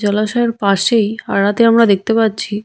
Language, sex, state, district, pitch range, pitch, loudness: Bengali, female, West Bengal, Jhargram, 205-230 Hz, 215 Hz, -14 LUFS